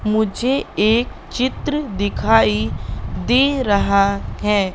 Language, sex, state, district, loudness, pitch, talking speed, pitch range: Hindi, female, Madhya Pradesh, Katni, -18 LUFS, 210 Hz, 90 wpm, 190-245 Hz